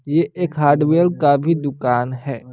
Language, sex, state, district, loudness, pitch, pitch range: Hindi, male, Bihar, West Champaran, -18 LUFS, 145 Hz, 135-165 Hz